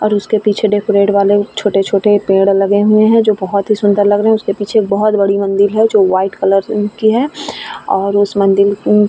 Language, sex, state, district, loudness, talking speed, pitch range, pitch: Hindi, female, Uttar Pradesh, Etah, -12 LUFS, 220 wpm, 200-215 Hz, 205 Hz